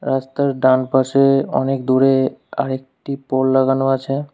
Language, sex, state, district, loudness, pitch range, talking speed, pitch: Bengali, male, West Bengal, Alipurduar, -17 LUFS, 130-135 Hz, 125 wpm, 135 Hz